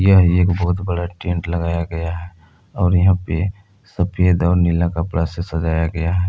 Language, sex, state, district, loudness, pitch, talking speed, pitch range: Hindi, male, Jharkhand, Palamu, -19 LUFS, 85 Hz, 180 wpm, 85-90 Hz